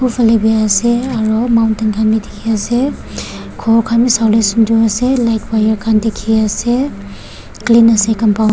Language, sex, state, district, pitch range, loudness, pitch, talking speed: Nagamese, female, Nagaland, Kohima, 220-235 Hz, -13 LUFS, 225 Hz, 150 wpm